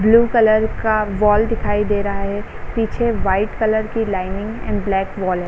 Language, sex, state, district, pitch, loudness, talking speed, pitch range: Hindi, female, Bihar, Sitamarhi, 210 Hz, -18 LUFS, 195 wpm, 200-220 Hz